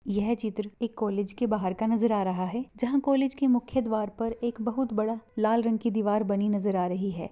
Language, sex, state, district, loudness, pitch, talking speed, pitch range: Hindi, female, Maharashtra, Nagpur, -28 LUFS, 220 Hz, 240 wpm, 205-235 Hz